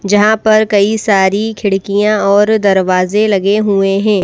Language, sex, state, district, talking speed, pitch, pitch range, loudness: Hindi, female, Madhya Pradesh, Bhopal, 140 wpm, 205 Hz, 195-215 Hz, -11 LUFS